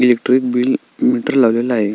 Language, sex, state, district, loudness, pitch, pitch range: Marathi, male, Maharashtra, Sindhudurg, -15 LUFS, 125 Hz, 120-130 Hz